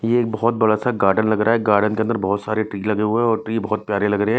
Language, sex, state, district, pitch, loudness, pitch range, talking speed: Hindi, male, Chhattisgarh, Raipur, 110 Hz, -19 LUFS, 105-115 Hz, 340 wpm